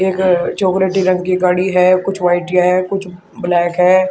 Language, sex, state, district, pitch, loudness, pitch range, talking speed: Hindi, male, Uttar Pradesh, Shamli, 185 Hz, -14 LUFS, 180-190 Hz, 175 wpm